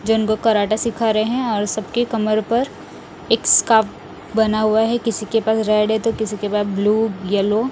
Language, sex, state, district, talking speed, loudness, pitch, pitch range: Hindi, male, Odisha, Nuapada, 210 wpm, -18 LUFS, 220 Hz, 215-225 Hz